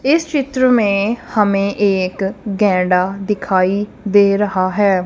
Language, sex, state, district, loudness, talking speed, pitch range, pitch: Hindi, female, Punjab, Kapurthala, -16 LUFS, 120 wpm, 195-215 Hz, 200 Hz